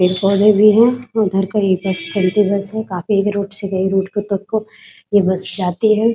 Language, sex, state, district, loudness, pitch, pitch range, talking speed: Hindi, female, Bihar, Muzaffarpur, -16 LUFS, 200 Hz, 190-215 Hz, 135 wpm